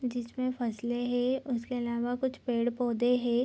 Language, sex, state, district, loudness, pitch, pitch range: Hindi, female, Bihar, Gopalganj, -31 LUFS, 245 Hz, 240-250 Hz